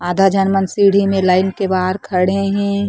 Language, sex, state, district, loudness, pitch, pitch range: Chhattisgarhi, female, Chhattisgarh, Korba, -15 LUFS, 195 Hz, 185-200 Hz